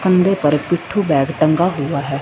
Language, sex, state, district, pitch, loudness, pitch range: Hindi, female, Punjab, Fazilka, 155 Hz, -16 LUFS, 140-185 Hz